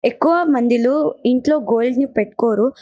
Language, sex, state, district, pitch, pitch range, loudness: Telugu, female, Karnataka, Bellary, 250 Hz, 235-300 Hz, -17 LUFS